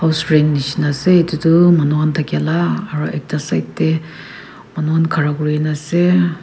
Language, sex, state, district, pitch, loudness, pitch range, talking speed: Nagamese, female, Nagaland, Kohima, 155 Hz, -16 LUFS, 145-165 Hz, 160 wpm